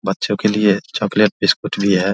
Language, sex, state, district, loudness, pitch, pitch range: Hindi, male, Bihar, Vaishali, -17 LUFS, 100 Hz, 100-105 Hz